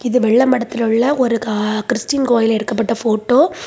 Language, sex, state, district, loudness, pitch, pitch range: Tamil, female, Tamil Nadu, Kanyakumari, -16 LUFS, 235 Hz, 225-250 Hz